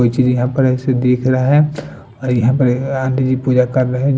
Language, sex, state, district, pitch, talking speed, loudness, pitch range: Hindi, male, Punjab, Fazilka, 130 Hz, 230 wpm, -15 LUFS, 125-130 Hz